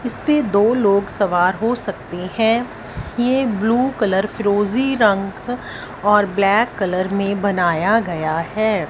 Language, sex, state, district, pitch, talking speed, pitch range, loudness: Hindi, female, Punjab, Fazilka, 205 Hz, 130 wpm, 195-230 Hz, -18 LUFS